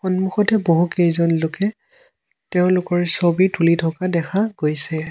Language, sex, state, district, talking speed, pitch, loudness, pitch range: Assamese, male, Assam, Sonitpur, 105 wpm, 175 Hz, -19 LUFS, 165-190 Hz